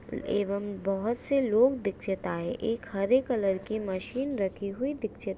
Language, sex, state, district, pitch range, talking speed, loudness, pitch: Hindi, female, Maharashtra, Aurangabad, 195-250 Hz, 165 wpm, -29 LUFS, 205 Hz